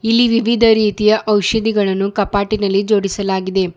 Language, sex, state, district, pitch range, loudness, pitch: Kannada, female, Karnataka, Bidar, 195-220 Hz, -15 LUFS, 210 Hz